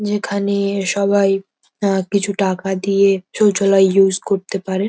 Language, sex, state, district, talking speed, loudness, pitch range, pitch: Bengali, female, West Bengal, North 24 Parganas, 125 wpm, -17 LUFS, 195-200 Hz, 195 Hz